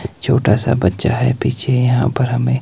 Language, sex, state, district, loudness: Hindi, male, Himachal Pradesh, Shimla, -16 LUFS